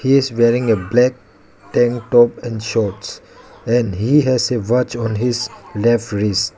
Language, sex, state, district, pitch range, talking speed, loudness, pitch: English, male, Arunachal Pradesh, Lower Dibang Valley, 110-125 Hz, 155 wpm, -17 LUFS, 120 Hz